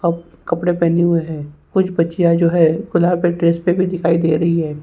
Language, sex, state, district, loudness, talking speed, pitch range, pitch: Hindi, male, Uttar Pradesh, Jyotiba Phule Nagar, -16 LUFS, 160 wpm, 165-175 Hz, 170 Hz